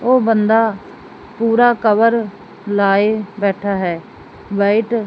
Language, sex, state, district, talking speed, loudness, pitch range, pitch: Punjabi, female, Punjab, Fazilka, 105 wpm, -16 LUFS, 200-230 Hz, 215 Hz